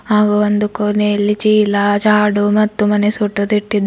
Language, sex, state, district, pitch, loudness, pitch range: Kannada, female, Karnataka, Bidar, 210 Hz, -14 LUFS, 205-210 Hz